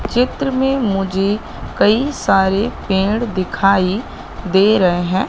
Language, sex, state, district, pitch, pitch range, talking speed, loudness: Hindi, female, Madhya Pradesh, Katni, 200 Hz, 190-235 Hz, 115 wpm, -16 LUFS